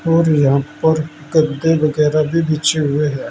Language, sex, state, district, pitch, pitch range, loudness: Hindi, male, Uttar Pradesh, Saharanpur, 155 Hz, 150-160 Hz, -16 LUFS